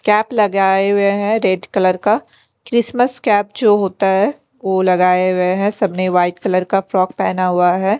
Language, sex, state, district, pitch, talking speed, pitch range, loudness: Hindi, female, Delhi, New Delhi, 195 Hz, 180 wpm, 185-210 Hz, -15 LUFS